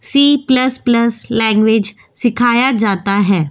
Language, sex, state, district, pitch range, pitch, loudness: Hindi, female, Goa, North and South Goa, 205-255 Hz, 235 Hz, -13 LUFS